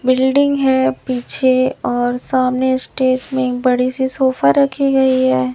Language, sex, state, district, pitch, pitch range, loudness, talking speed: Hindi, male, Chhattisgarh, Raipur, 260 Hz, 250-265 Hz, -16 LUFS, 140 wpm